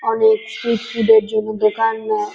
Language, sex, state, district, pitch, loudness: Bengali, female, West Bengal, North 24 Parganas, 225 Hz, -17 LUFS